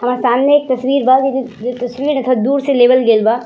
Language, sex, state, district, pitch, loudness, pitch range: Bhojpuri, female, Uttar Pradesh, Gorakhpur, 255 Hz, -13 LUFS, 245-270 Hz